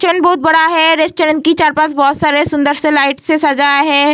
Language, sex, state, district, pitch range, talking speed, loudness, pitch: Hindi, female, Bihar, Vaishali, 290-320 Hz, 245 wpm, -11 LUFS, 310 Hz